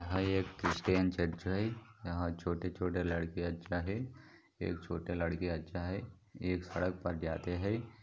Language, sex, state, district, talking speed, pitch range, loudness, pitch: Hindi, male, Maharashtra, Solapur, 155 wpm, 85-95 Hz, -37 LUFS, 90 Hz